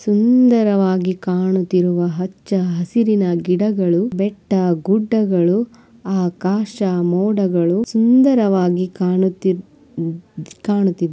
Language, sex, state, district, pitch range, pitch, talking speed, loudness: Kannada, female, Karnataka, Belgaum, 180-210 Hz, 190 Hz, 60 wpm, -17 LUFS